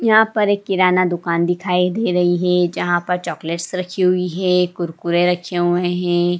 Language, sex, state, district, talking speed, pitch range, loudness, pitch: Hindi, female, Jharkhand, Sahebganj, 180 wpm, 175-185 Hz, -18 LUFS, 180 Hz